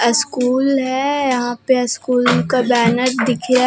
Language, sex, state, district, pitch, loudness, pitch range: Hindi, female, Jharkhand, Deoghar, 255 Hz, -16 LUFS, 240-260 Hz